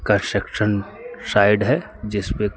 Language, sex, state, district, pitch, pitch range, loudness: Hindi, male, Uttar Pradesh, Lucknow, 105 Hz, 105-155 Hz, -20 LUFS